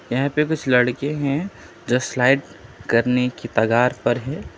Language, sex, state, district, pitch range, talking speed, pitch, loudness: Hindi, male, West Bengal, Alipurduar, 120-140 Hz, 155 wpm, 125 Hz, -20 LUFS